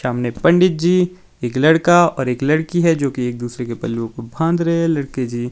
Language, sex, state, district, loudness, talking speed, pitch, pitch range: Hindi, male, Himachal Pradesh, Shimla, -17 LUFS, 230 wpm, 145 Hz, 120-170 Hz